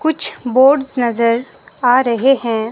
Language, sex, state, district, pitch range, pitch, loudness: Hindi, male, Himachal Pradesh, Shimla, 235-270 Hz, 245 Hz, -15 LUFS